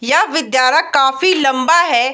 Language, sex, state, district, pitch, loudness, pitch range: Hindi, female, Bihar, Bhagalpur, 275 Hz, -13 LUFS, 255-330 Hz